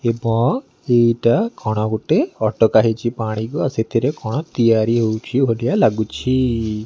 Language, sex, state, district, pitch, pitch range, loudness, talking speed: Odia, male, Odisha, Nuapada, 115 Hz, 110-125 Hz, -18 LUFS, 125 wpm